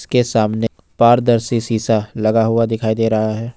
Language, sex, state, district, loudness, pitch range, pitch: Hindi, male, Jharkhand, Ranchi, -16 LUFS, 110-115 Hz, 115 Hz